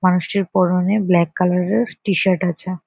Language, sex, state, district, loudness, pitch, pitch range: Bengali, female, West Bengal, North 24 Parganas, -18 LUFS, 185 Hz, 180-195 Hz